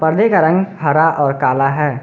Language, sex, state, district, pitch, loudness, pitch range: Hindi, male, Jharkhand, Garhwa, 155 Hz, -14 LUFS, 140-170 Hz